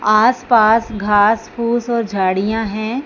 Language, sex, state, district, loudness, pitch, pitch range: Hindi, male, Punjab, Fazilka, -15 LUFS, 220 Hz, 210-235 Hz